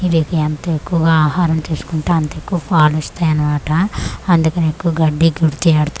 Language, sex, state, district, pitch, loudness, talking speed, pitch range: Telugu, female, Andhra Pradesh, Manyam, 160 Hz, -16 LUFS, 140 wpm, 155-170 Hz